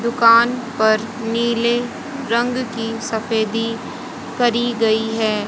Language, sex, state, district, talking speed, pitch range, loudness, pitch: Hindi, female, Haryana, Jhajjar, 100 wpm, 225-240 Hz, -18 LUFS, 230 Hz